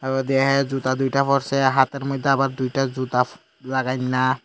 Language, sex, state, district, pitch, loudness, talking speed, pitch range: Bengali, male, Tripura, Unakoti, 135 Hz, -21 LUFS, 150 wpm, 130-135 Hz